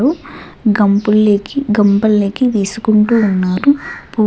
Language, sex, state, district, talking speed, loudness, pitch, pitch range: Telugu, female, Andhra Pradesh, Sri Satya Sai, 70 wpm, -13 LUFS, 215 Hz, 205-240 Hz